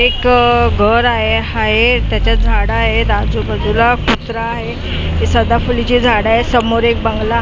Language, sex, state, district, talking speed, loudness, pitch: Marathi, female, Maharashtra, Mumbai Suburban, 135 wpm, -13 LUFS, 215 Hz